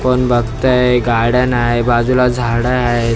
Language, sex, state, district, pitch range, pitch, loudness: Marathi, male, Maharashtra, Mumbai Suburban, 120-125 Hz, 120 Hz, -14 LUFS